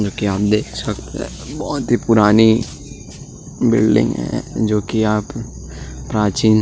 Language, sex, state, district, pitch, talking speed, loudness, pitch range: Hindi, male, Chhattisgarh, Sukma, 105 Hz, 145 wpm, -17 LUFS, 100-110 Hz